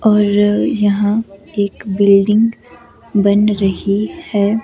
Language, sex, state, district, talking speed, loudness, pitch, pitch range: Hindi, female, Himachal Pradesh, Shimla, 90 wpm, -15 LUFS, 205 Hz, 200-215 Hz